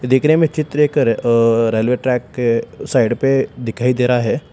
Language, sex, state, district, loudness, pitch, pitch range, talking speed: Hindi, male, Telangana, Hyderabad, -16 LUFS, 125 Hz, 115-135 Hz, 170 wpm